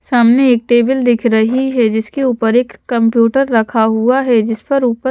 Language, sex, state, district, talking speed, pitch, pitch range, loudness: Hindi, female, Chhattisgarh, Raipur, 190 wpm, 240 Hz, 225-255 Hz, -13 LUFS